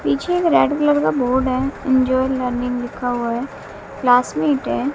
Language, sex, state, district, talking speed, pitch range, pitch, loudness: Hindi, female, Bihar, West Champaran, 170 wpm, 245-270 Hz, 255 Hz, -18 LUFS